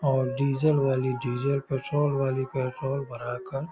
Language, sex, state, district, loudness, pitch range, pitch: Hindi, male, Uttar Pradesh, Hamirpur, -27 LUFS, 130-140 Hz, 135 Hz